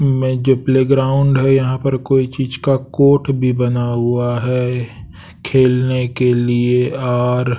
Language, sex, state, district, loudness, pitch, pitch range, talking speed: Hindi, male, Bihar, West Champaran, -15 LUFS, 130 Hz, 125-135 Hz, 150 wpm